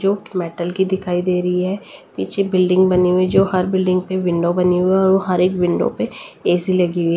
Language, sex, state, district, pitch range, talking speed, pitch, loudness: Hindi, female, Delhi, New Delhi, 180-190 Hz, 235 wpm, 180 Hz, -17 LUFS